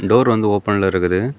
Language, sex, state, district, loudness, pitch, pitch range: Tamil, male, Tamil Nadu, Kanyakumari, -17 LUFS, 105 Hz, 95-120 Hz